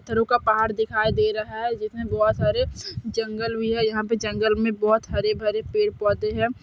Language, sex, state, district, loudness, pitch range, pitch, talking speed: Hindi, female, Bihar, Saran, -23 LUFS, 215-225 Hz, 220 Hz, 200 wpm